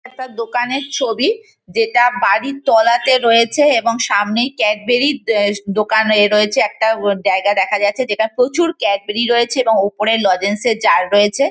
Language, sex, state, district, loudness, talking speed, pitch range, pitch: Bengali, female, West Bengal, Kolkata, -15 LUFS, 155 wpm, 205-250 Hz, 225 Hz